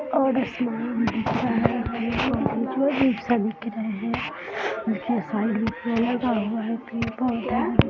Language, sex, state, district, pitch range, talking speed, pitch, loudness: Hindi, female, Bihar, Sitamarhi, 225-245 Hz, 85 wpm, 235 Hz, -25 LUFS